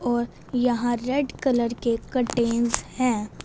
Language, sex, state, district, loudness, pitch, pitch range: Hindi, female, Punjab, Fazilka, -24 LUFS, 240 Hz, 235-250 Hz